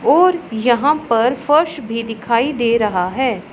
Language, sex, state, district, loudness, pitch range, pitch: Hindi, female, Punjab, Pathankot, -16 LUFS, 230-290 Hz, 240 Hz